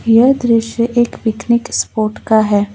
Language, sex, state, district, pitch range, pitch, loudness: Hindi, female, West Bengal, Alipurduar, 220-235 Hz, 230 Hz, -14 LUFS